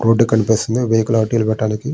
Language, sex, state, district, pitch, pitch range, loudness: Telugu, male, Andhra Pradesh, Srikakulam, 115 Hz, 110-115 Hz, -16 LUFS